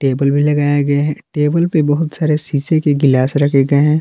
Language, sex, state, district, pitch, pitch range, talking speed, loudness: Hindi, male, Jharkhand, Palamu, 145 Hz, 140-150 Hz, 210 wpm, -14 LUFS